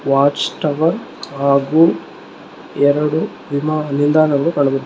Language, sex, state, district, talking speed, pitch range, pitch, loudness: Kannada, male, Karnataka, Mysore, 60 wpm, 140-155 Hz, 145 Hz, -16 LUFS